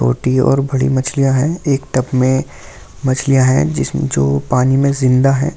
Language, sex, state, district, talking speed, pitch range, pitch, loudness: Hindi, male, Delhi, New Delhi, 170 wpm, 95-135 Hz, 130 Hz, -15 LUFS